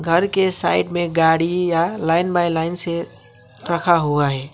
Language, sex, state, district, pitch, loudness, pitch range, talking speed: Hindi, male, West Bengal, Alipurduar, 170 Hz, -19 LUFS, 160-175 Hz, 170 wpm